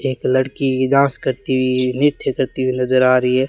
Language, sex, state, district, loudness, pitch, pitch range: Hindi, male, Rajasthan, Bikaner, -17 LUFS, 130 Hz, 130-135 Hz